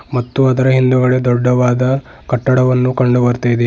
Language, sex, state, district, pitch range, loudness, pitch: Kannada, male, Karnataka, Bidar, 125-130 Hz, -14 LUFS, 125 Hz